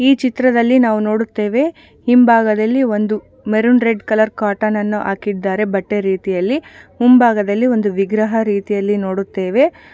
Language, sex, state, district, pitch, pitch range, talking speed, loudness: Kannada, female, Karnataka, Shimoga, 215 Hz, 205-245 Hz, 110 wpm, -15 LUFS